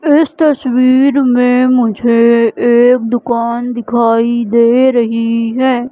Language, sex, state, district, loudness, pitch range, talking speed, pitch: Hindi, female, Madhya Pradesh, Katni, -11 LUFS, 235-255 Hz, 100 wpm, 240 Hz